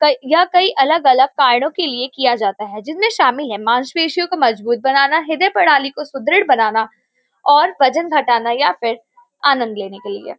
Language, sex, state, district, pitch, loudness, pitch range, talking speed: Hindi, female, Uttar Pradesh, Varanasi, 275 Hz, -15 LUFS, 235-330 Hz, 185 wpm